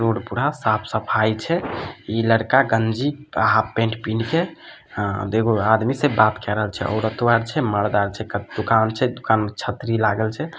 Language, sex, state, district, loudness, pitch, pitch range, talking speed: Maithili, male, Bihar, Samastipur, -21 LUFS, 110 Hz, 110-120 Hz, 180 wpm